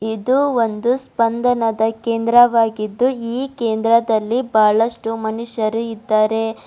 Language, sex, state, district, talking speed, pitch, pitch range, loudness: Kannada, female, Karnataka, Bidar, 80 wpm, 230 Hz, 220-240 Hz, -17 LUFS